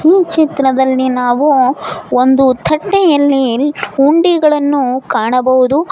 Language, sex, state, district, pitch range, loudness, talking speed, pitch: Kannada, female, Karnataka, Koppal, 260-305 Hz, -12 LUFS, 70 wpm, 275 Hz